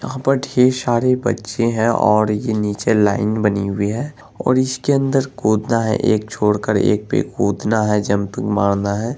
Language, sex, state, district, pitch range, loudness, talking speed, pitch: Hindi, male, Bihar, Araria, 105-125 Hz, -18 LUFS, 190 wpm, 110 Hz